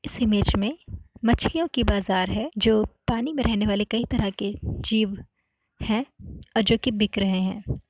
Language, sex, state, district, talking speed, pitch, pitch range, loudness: Hindi, female, Uttar Pradesh, Varanasi, 175 wpm, 220 Hz, 205-235 Hz, -24 LUFS